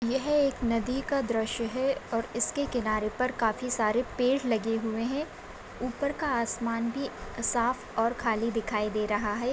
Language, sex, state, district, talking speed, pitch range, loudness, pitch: Hindi, female, Maharashtra, Aurangabad, 170 wpm, 225-260 Hz, -29 LUFS, 235 Hz